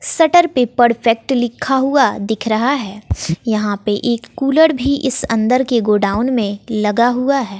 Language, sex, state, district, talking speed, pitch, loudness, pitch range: Hindi, female, Bihar, West Champaran, 165 wpm, 240 Hz, -15 LUFS, 215-270 Hz